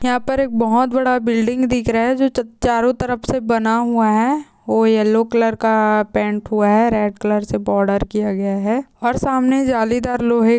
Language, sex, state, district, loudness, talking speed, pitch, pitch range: Hindi, female, Maharashtra, Dhule, -17 LUFS, 200 wpm, 230 Hz, 215-250 Hz